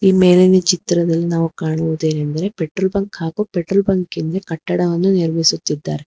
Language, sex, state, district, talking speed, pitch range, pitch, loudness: Kannada, female, Karnataka, Bangalore, 100 wpm, 165-190 Hz, 175 Hz, -17 LUFS